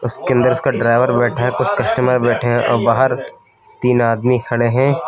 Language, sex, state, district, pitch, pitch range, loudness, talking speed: Hindi, male, Uttar Pradesh, Lucknow, 125 Hz, 120-130 Hz, -16 LUFS, 190 wpm